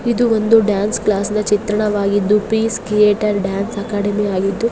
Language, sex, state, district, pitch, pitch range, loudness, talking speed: Kannada, female, Karnataka, Bellary, 210 Hz, 205-220 Hz, -16 LUFS, 140 wpm